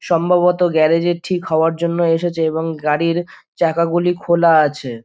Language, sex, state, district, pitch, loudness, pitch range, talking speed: Bengali, male, West Bengal, Dakshin Dinajpur, 170 Hz, -16 LUFS, 160-175 Hz, 165 wpm